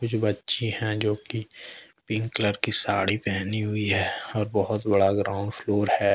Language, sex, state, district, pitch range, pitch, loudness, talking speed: Hindi, male, Jharkhand, Deoghar, 100-110 Hz, 105 Hz, -23 LUFS, 165 wpm